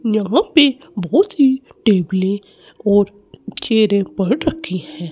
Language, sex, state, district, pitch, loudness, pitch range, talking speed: Hindi, male, Chandigarh, Chandigarh, 215 Hz, -17 LUFS, 195-280 Hz, 115 wpm